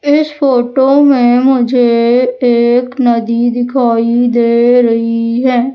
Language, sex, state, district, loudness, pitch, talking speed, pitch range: Hindi, male, Madhya Pradesh, Umaria, -10 LUFS, 245 Hz, 105 wpm, 235-260 Hz